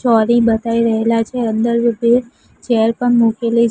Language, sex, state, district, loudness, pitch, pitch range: Gujarati, female, Gujarat, Gandhinagar, -15 LUFS, 230 Hz, 230-235 Hz